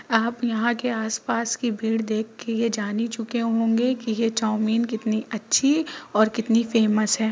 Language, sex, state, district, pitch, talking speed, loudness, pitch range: Hindi, female, Uttar Pradesh, Muzaffarnagar, 225 Hz, 190 wpm, -23 LUFS, 220-235 Hz